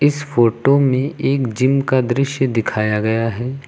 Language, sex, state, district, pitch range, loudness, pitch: Hindi, male, Uttar Pradesh, Lucknow, 115-140 Hz, -17 LUFS, 130 Hz